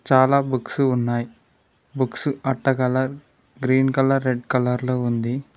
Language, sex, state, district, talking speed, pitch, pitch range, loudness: Telugu, male, Telangana, Mahabubabad, 120 wpm, 130 Hz, 125-135 Hz, -21 LUFS